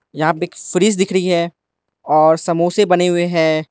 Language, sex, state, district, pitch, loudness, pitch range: Hindi, male, Arunachal Pradesh, Lower Dibang Valley, 175 Hz, -16 LUFS, 160-180 Hz